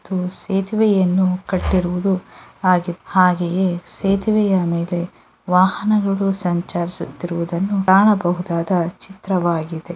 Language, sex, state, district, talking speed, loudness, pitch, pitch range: Kannada, female, Karnataka, Mysore, 65 wpm, -19 LUFS, 185 Hz, 175-195 Hz